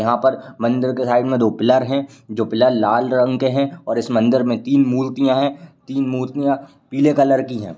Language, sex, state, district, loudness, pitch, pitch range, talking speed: Hindi, male, Uttar Pradesh, Ghazipur, -18 LUFS, 130 Hz, 120-135 Hz, 215 wpm